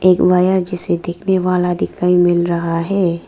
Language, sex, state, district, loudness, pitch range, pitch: Hindi, female, Arunachal Pradesh, Lower Dibang Valley, -15 LUFS, 175-185 Hz, 180 Hz